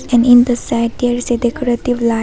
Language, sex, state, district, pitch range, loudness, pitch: English, female, Arunachal Pradesh, Papum Pare, 235-245 Hz, -14 LUFS, 240 Hz